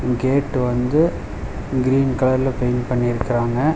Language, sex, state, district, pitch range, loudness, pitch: Tamil, male, Tamil Nadu, Chennai, 125-135 Hz, -20 LUFS, 130 Hz